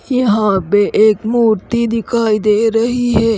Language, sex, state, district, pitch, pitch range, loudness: Hindi, female, Odisha, Khordha, 225 Hz, 215-235 Hz, -14 LUFS